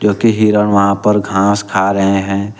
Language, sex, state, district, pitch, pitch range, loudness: Hindi, male, Jharkhand, Ranchi, 100 Hz, 100-105 Hz, -13 LUFS